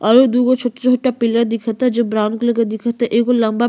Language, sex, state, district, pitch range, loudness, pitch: Bhojpuri, female, Uttar Pradesh, Gorakhpur, 230-245 Hz, -16 LUFS, 235 Hz